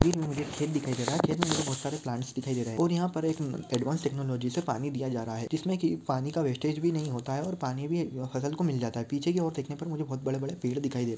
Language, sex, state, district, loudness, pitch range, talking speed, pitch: Hindi, male, Maharashtra, Aurangabad, -31 LUFS, 130-160 Hz, 305 wpm, 145 Hz